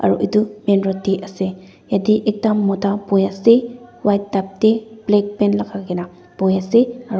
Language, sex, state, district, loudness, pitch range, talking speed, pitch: Nagamese, female, Nagaland, Dimapur, -18 LUFS, 195-220 Hz, 140 wpm, 205 Hz